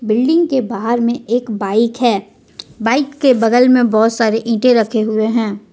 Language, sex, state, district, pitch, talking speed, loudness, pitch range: Hindi, female, Jharkhand, Ranchi, 230 Hz, 180 wpm, -14 LUFS, 220-250 Hz